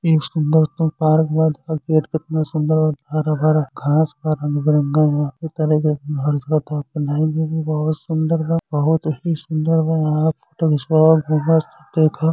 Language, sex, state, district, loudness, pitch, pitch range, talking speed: Bhojpuri, male, Uttar Pradesh, Gorakhpur, -19 LUFS, 155 Hz, 150-160 Hz, 125 wpm